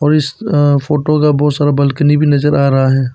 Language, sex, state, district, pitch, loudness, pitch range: Hindi, male, Arunachal Pradesh, Papum Pare, 145 Hz, -12 LUFS, 140-150 Hz